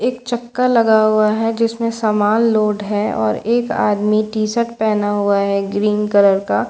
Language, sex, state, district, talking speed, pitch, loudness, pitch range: Hindi, female, Bihar, Katihar, 180 wpm, 215 Hz, -16 LUFS, 205-230 Hz